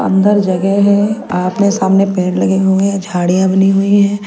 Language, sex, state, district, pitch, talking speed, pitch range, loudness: Hindi, female, Bihar, Patna, 195 Hz, 170 wpm, 190-200 Hz, -12 LUFS